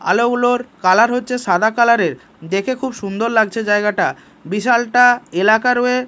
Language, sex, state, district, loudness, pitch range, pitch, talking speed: Bengali, male, Odisha, Malkangiri, -16 LUFS, 205-245 Hz, 235 Hz, 140 wpm